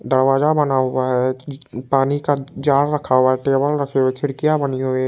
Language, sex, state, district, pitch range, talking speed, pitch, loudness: Hindi, male, Bihar, Purnia, 130-145 Hz, 235 wpm, 135 Hz, -18 LUFS